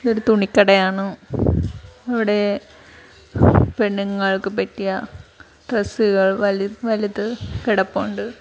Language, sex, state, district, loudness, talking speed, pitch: Malayalam, female, Kerala, Kollam, -19 LUFS, 65 wpm, 195 Hz